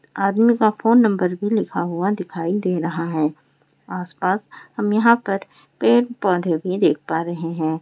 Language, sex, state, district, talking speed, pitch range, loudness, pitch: Hindi, female, Rajasthan, Churu, 175 wpm, 170-210 Hz, -20 LUFS, 185 Hz